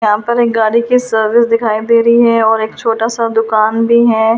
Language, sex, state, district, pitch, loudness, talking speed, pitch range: Hindi, female, Delhi, New Delhi, 225 Hz, -12 LUFS, 230 wpm, 220-235 Hz